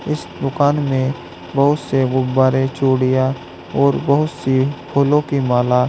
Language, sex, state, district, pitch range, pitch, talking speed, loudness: Hindi, male, Uttar Pradesh, Saharanpur, 125-140 Hz, 130 Hz, 130 wpm, -17 LUFS